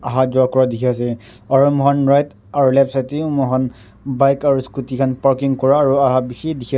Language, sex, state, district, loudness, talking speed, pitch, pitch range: Nagamese, male, Nagaland, Dimapur, -16 LUFS, 230 wpm, 135 Hz, 130-140 Hz